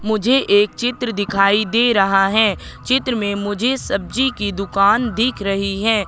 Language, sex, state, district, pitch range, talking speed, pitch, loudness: Hindi, female, Madhya Pradesh, Katni, 200-240 Hz, 160 wpm, 210 Hz, -17 LUFS